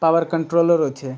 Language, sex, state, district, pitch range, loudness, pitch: Maithili, male, Bihar, Supaul, 155-170 Hz, -19 LUFS, 165 Hz